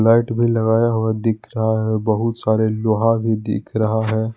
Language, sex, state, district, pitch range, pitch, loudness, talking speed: Hindi, male, Jharkhand, Palamu, 110-115 Hz, 110 Hz, -19 LUFS, 195 wpm